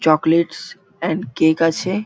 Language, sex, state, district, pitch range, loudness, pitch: Bengali, male, West Bengal, Dakshin Dinajpur, 160-170 Hz, -18 LUFS, 165 Hz